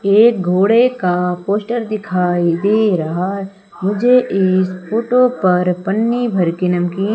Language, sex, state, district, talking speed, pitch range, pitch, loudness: Hindi, female, Madhya Pradesh, Umaria, 115 wpm, 180-220 Hz, 195 Hz, -15 LUFS